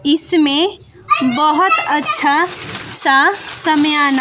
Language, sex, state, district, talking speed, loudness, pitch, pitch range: Hindi, female, Bihar, West Champaran, 70 wpm, -14 LUFS, 305 Hz, 290-360 Hz